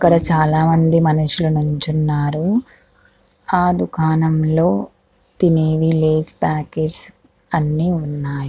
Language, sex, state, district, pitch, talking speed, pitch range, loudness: Telugu, female, Andhra Pradesh, Krishna, 155 Hz, 90 wpm, 150-165 Hz, -17 LUFS